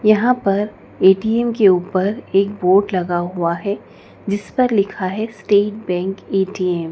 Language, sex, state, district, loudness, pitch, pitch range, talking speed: Hindi, female, Madhya Pradesh, Dhar, -18 LUFS, 195 Hz, 185-210 Hz, 155 wpm